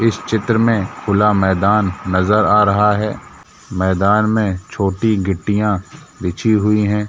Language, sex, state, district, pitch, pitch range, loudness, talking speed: Hindi, male, Jharkhand, Jamtara, 105 Hz, 95-110 Hz, -16 LUFS, 135 wpm